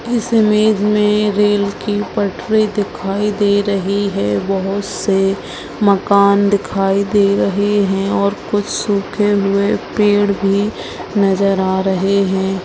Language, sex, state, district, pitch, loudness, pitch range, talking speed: Hindi, female, Chhattisgarh, Balrampur, 200 Hz, -15 LUFS, 195-205 Hz, 135 wpm